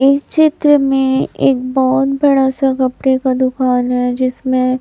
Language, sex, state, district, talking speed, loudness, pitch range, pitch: Hindi, male, Chhattisgarh, Raipur, 150 wpm, -14 LUFS, 255-270 Hz, 265 Hz